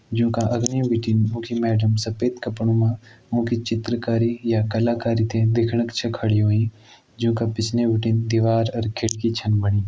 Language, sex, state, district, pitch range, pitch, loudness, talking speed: Garhwali, male, Uttarakhand, Tehri Garhwal, 110-115 Hz, 115 Hz, -22 LUFS, 170 wpm